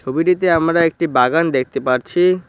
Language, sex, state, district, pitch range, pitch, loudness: Bengali, male, West Bengal, Cooch Behar, 130-175 Hz, 165 Hz, -16 LUFS